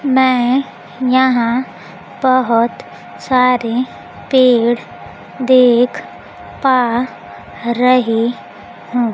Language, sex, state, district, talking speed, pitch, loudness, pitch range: Hindi, female, Bihar, Kaimur, 60 wpm, 245 Hz, -14 LUFS, 235-255 Hz